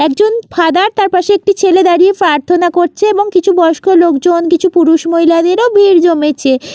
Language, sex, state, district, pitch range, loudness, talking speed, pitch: Bengali, female, West Bengal, Jalpaiguri, 335-390 Hz, -10 LUFS, 160 wpm, 355 Hz